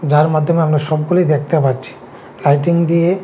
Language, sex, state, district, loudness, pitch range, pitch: Bengali, male, Tripura, West Tripura, -15 LUFS, 145-170 Hz, 155 Hz